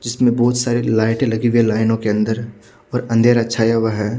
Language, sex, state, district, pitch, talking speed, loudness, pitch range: Hindi, male, Chhattisgarh, Raipur, 115 Hz, 215 wpm, -17 LUFS, 110-120 Hz